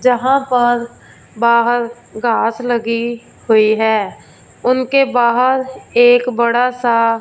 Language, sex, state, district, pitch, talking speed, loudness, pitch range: Hindi, female, Punjab, Fazilka, 240 Hz, 100 wpm, -14 LUFS, 230-250 Hz